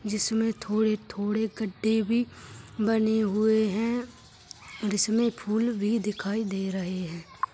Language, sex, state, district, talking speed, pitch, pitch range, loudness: Hindi, female, Uttar Pradesh, Jyotiba Phule Nagar, 120 wpm, 215 Hz, 205-225 Hz, -27 LUFS